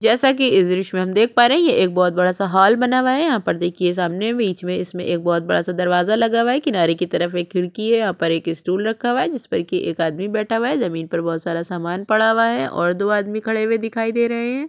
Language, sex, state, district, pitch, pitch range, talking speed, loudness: Hindi, female, Chhattisgarh, Sukma, 195 Hz, 175-230 Hz, 295 wpm, -19 LUFS